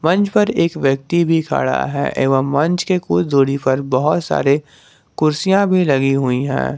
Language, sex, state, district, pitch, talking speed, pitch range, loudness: Hindi, male, Jharkhand, Garhwa, 140 Hz, 175 wpm, 135-170 Hz, -16 LUFS